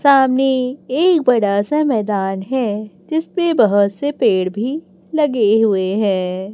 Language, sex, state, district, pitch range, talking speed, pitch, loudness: Hindi, female, Chhattisgarh, Raipur, 200-285 Hz, 130 wpm, 230 Hz, -17 LUFS